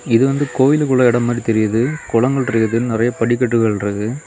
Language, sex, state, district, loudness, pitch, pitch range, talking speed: Tamil, male, Tamil Nadu, Kanyakumari, -16 LUFS, 120 Hz, 115-130 Hz, 155 wpm